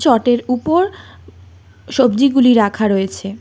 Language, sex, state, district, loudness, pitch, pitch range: Bengali, female, Karnataka, Bangalore, -15 LUFS, 225 Hz, 190-255 Hz